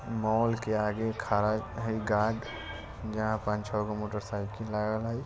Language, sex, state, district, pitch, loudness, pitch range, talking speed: Hindi, male, Bihar, Vaishali, 110 Hz, -31 LUFS, 105-110 Hz, 150 wpm